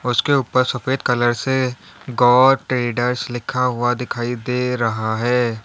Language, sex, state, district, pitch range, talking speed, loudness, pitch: Hindi, male, Uttar Pradesh, Lalitpur, 120-130 Hz, 140 wpm, -19 LUFS, 125 Hz